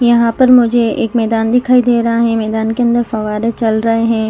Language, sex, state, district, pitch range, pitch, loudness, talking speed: Hindi, female, Chhattisgarh, Rajnandgaon, 225-240 Hz, 230 Hz, -13 LUFS, 225 wpm